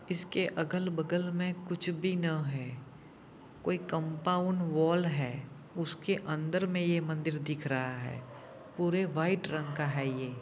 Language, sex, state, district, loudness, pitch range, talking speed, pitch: Hindi, male, Jharkhand, Jamtara, -33 LUFS, 150-180 Hz, 145 wpm, 160 Hz